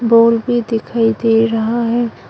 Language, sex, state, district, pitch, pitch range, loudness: Hindi, female, Arunachal Pradesh, Longding, 230 Hz, 225-235 Hz, -15 LUFS